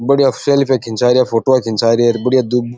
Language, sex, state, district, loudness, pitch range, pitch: Rajasthani, male, Rajasthan, Churu, -14 LUFS, 115-130 Hz, 125 Hz